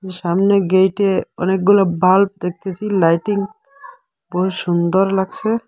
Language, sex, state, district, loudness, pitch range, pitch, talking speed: Bengali, female, Assam, Hailakandi, -17 LUFS, 185-205 Hz, 190 Hz, 95 wpm